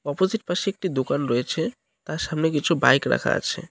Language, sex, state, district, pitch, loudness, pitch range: Bengali, male, West Bengal, Cooch Behar, 165 Hz, -23 LUFS, 145-190 Hz